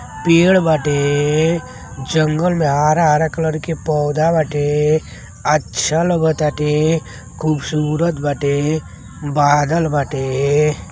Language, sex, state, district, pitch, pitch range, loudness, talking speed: Bhojpuri, male, Uttar Pradesh, Deoria, 150 Hz, 145-160 Hz, -16 LUFS, 80 wpm